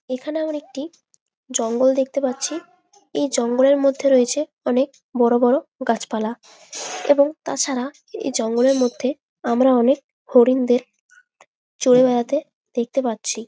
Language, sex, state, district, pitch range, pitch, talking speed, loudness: Bengali, female, West Bengal, Malda, 245-290 Hz, 265 Hz, 115 wpm, -20 LUFS